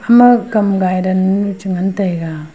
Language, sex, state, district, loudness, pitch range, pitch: Wancho, female, Arunachal Pradesh, Longding, -14 LUFS, 185-205 Hz, 195 Hz